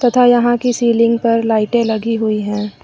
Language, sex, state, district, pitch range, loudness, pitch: Hindi, female, Uttar Pradesh, Lucknow, 220-240 Hz, -14 LUFS, 230 Hz